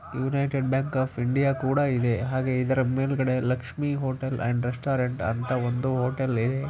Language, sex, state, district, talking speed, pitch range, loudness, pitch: Kannada, male, Karnataka, Raichur, 150 wpm, 125-135 Hz, -26 LUFS, 130 Hz